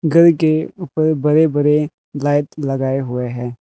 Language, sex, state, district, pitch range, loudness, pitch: Hindi, male, Arunachal Pradesh, Lower Dibang Valley, 135-155 Hz, -17 LUFS, 150 Hz